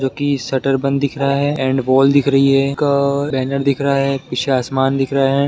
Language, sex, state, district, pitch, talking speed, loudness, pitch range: Hindi, male, Bihar, Sitamarhi, 135 Hz, 230 wpm, -16 LUFS, 135-140 Hz